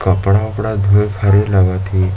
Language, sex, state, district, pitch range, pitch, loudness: Chhattisgarhi, male, Chhattisgarh, Sarguja, 95-105 Hz, 100 Hz, -14 LUFS